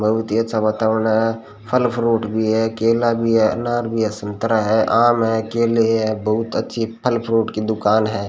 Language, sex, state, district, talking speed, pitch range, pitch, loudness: Hindi, male, Rajasthan, Bikaner, 200 wpm, 110-115 Hz, 115 Hz, -18 LUFS